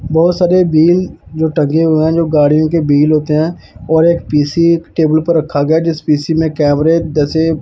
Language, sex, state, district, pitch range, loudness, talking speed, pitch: Hindi, male, Punjab, Pathankot, 150-165 Hz, -12 LUFS, 205 wpm, 160 Hz